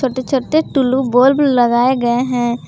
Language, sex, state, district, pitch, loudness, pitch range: Hindi, female, Jharkhand, Palamu, 255 Hz, -14 LUFS, 245-270 Hz